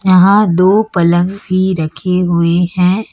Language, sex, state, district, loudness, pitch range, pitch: Hindi, female, Chhattisgarh, Raipur, -12 LUFS, 175-190 Hz, 185 Hz